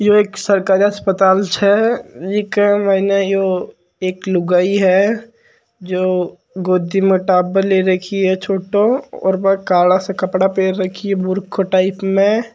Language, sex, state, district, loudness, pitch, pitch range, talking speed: Marwari, male, Rajasthan, Nagaur, -16 LUFS, 195 Hz, 185-200 Hz, 135 wpm